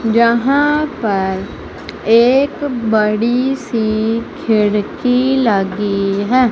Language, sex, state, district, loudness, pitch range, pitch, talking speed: Hindi, female, Madhya Pradesh, Umaria, -15 LUFS, 210-260 Hz, 230 Hz, 75 wpm